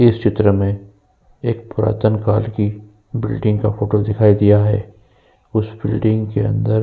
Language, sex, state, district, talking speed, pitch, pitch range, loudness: Hindi, male, Uttar Pradesh, Jyotiba Phule Nagar, 160 wpm, 105 Hz, 105-110 Hz, -17 LUFS